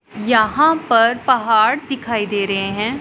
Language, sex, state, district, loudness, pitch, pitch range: Hindi, female, Punjab, Pathankot, -16 LUFS, 230 Hz, 215-260 Hz